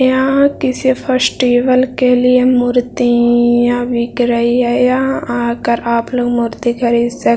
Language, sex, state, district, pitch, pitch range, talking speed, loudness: Hindi, male, Bihar, Jahanabad, 245 Hz, 240-255 Hz, 140 wpm, -13 LUFS